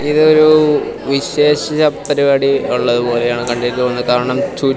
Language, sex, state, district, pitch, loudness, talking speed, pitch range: Malayalam, male, Kerala, Kasaragod, 140 Hz, -14 LUFS, 115 wpm, 125-150 Hz